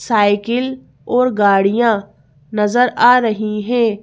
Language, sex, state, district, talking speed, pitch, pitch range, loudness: Hindi, female, Madhya Pradesh, Bhopal, 105 wpm, 215 Hz, 205-245 Hz, -15 LUFS